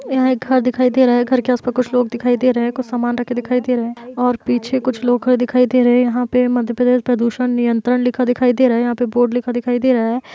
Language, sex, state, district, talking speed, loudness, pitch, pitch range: Hindi, female, Uttar Pradesh, Varanasi, 295 wpm, -16 LUFS, 245 Hz, 245-250 Hz